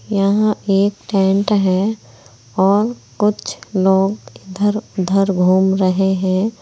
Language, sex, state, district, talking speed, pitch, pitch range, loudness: Hindi, female, Uttar Pradesh, Saharanpur, 110 wpm, 195 Hz, 190-205 Hz, -16 LUFS